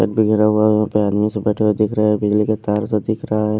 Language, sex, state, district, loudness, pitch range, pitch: Hindi, male, Himachal Pradesh, Shimla, -17 LUFS, 105-110 Hz, 105 Hz